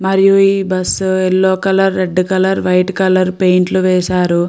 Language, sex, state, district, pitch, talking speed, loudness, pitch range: Telugu, female, Andhra Pradesh, Guntur, 185 Hz, 160 wpm, -13 LUFS, 185-190 Hz